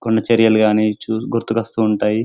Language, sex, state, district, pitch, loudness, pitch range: Telugu, male, Telangana, Karimnagar, 110 Hz, -17 LUFS, 110-115 Hz